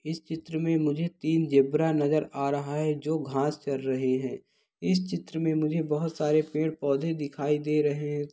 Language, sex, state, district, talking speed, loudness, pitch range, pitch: Hindi, male, Andhra Pradesh, Visakhapatnam, 200 wpm, -28 LUFS, 145-160 Hz, 150 Hz